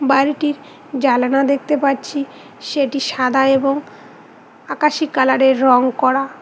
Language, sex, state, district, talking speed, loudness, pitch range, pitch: Bengali, female, West Bengal, Cooch Behar, 105 wpm, -16 LUFS, 265-280 Hz, 275 Hz